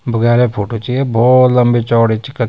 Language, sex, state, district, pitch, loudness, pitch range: Garhwali, male, Uttarakhand, Tehri Garhwal, 120 Hz, -12 LUFS, 115-125 Hz